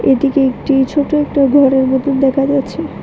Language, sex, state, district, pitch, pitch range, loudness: Bengali, female, Tripura, West Tripura, 275 Hz, 265-280 Hz, -13 LUFS